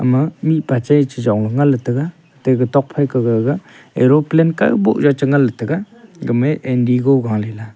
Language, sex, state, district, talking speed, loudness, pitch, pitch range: Wancho, male, Arunachal Pradesh, Longding, 170 wpm, -16 LUFS, 135 Hz, 125-150 Hz